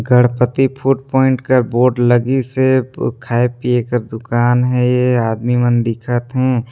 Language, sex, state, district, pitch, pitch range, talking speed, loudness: Chhattisgarhi, male, Chhattisgarh, Sarguja, 125 Hz, 120-130 Hz, 150 wpm, -15 LUFS